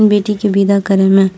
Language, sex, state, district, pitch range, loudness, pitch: Maithili, female, Bihar, Purnia, 195-205 Hz, -12 LUFS, 200 Hz